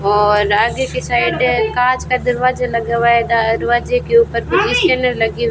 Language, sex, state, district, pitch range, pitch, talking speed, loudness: Hindi, female, Rajasthan, Bikaner, 210-250 Hz, 235 Hz, 185 wpm, -15 LUFS